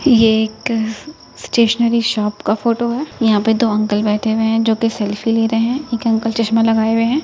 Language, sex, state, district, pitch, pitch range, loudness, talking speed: Hindi, female, Uttar Pradesh, Etah, 225 Hz, 220-235 Hz, -16 LUFS, 205 wpm